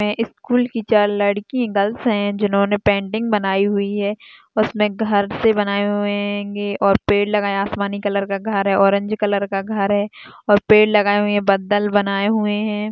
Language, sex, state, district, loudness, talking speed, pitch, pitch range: Hindi, female, Rajasthan, Churu, -18 LUFS, 180 wpm, 205 Hz, 200-210 Hz